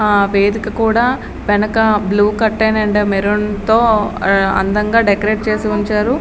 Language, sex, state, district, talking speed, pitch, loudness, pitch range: Telugu, female, Andhra Pradesh, Srikakulam, 125 wpm, 210 Hz, -14 LUFS, 205-220 Hz